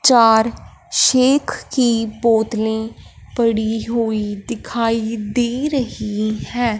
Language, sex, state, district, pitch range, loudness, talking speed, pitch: Hindi, male, Punjab, Fazilka, 220-240 Hz, -18 LUFS, 90 wpm, 230 Hz